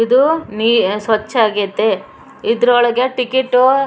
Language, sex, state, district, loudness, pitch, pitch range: Kannada, female, Karnataka, Raichur, -15 LUFS, 240 Hz, 220-260 Hz